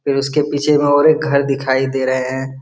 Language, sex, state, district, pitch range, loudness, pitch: Hindi, male, Bihar, Jamui, 135-145 Hz, -15 LUFS, 135 Hz